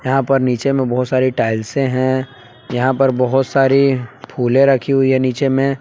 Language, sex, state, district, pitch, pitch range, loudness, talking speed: Hindi, male, Jharkhand, Palamu, 130 Hz, 125-135 Hz, -16 LUFS, 185 wpm